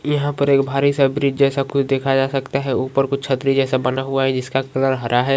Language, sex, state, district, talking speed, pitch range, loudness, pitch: Magahi, male, Bihar, Gaya, 270 wpm, 135-140 Hz, -19 LUFS, 135 Hz